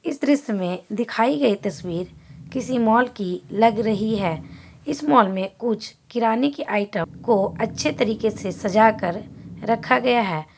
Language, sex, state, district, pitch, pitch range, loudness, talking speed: Hindi, female, Bihar, Gaya, 220 Hz, 190-240 Hz, -22 LUFS, 160 wpm